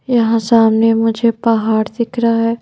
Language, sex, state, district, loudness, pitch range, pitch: Hindi, female, Bihar, Patna, -14 LUFS, 225-230 Hz, 230 Hz